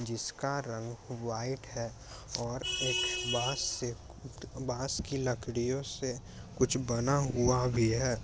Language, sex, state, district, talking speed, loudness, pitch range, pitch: Hindi, male, Bihar, Muzaffarpur, 125 wpm, -33 LUFS, 115-130 Hz, 125 Hz